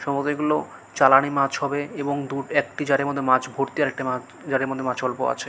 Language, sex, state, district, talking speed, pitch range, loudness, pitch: Bengali, male, West Bengal, Malda, 220 wpm, 130-145 Hz, -23 LUFS, 140 Hz